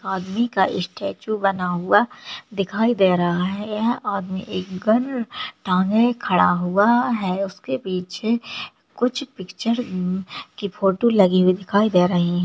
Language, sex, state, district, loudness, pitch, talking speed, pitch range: Hindi, female, Rajasthan, Churu, -21 LUFS, 195 Hz, 140 wpm, 185-225 Hz